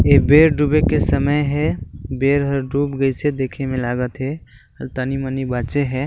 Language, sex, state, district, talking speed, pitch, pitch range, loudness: Chhattisgarhi, male, Chhattisgarh, Balrampur, 180 wpm, 135 Hz, 130-145 Hz, -18 LUFS